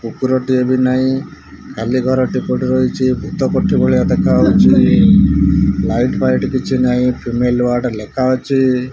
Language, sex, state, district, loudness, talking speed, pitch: Odia, male, Odisha, Malkangiri, -14 LUFS, 150 wpm, 120 Hz